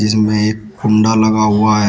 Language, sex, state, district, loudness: Hindi, male, Uttar Pradesh, Shamli, -13 LUFS